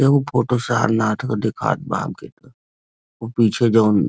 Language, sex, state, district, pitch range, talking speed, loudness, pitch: Bhojpuri, male, Uttar Pradesh, Varanasi, 105-120 Hz, 175 wpm, -19 LUFS, 115 Hz